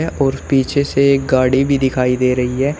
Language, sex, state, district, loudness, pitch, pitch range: Hindi, male, Uttar Pradesh, Shamli, -15 LUFS, 135 Hz, 130-140 Hz